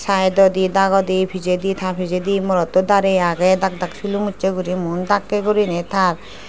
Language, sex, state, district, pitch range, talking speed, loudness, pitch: Chakma, female, Tripura, Dhalai, 180-195 Hz, 155 wpm, -18 LUFS, 190 Hz